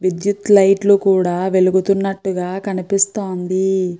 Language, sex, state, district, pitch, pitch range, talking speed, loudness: Telugu, female, Andhra Pradesh, Chittoor, 190 Hz, 185-195 Hz, 90 wpm, -16 LUFS